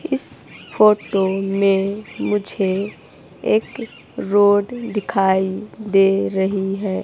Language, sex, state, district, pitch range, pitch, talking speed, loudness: Hindi, female, Himachal Pradesh, Shimla, 195-210 Hz, 200 Hz, 85 wpm, -19 LUFS